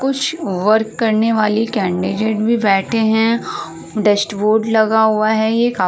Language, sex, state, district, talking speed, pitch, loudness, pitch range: Hindi, female, Uttar Pradesh, Varanasi, 155 wpm, 220 Hz, -16 LUFS, 210-225 Hz